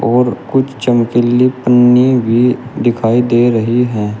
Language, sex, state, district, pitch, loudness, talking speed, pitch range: Hindi, male, Uttar Pradesh, Shamli, 120 Hz, -12 LUFS, 130 wpm, 120-125 Hz